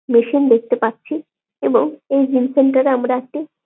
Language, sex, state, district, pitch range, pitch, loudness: Bengali, female, West Bengal, Jalpaiguri, 245-280 Hz, 260 Hz, -16 LUFS